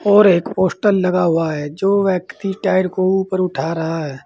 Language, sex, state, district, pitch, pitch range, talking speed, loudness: Hindi, male, Uttar Pradesh, Saharanpur, 185 Hz, 165-195 Hz, 195 wpm, -17 LUFS